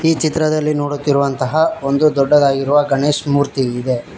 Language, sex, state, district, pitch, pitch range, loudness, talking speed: Kannada, male, Karnataka, Koppal, 145 Hz, 140-155 Hz, -16 LUFS, 115 wpm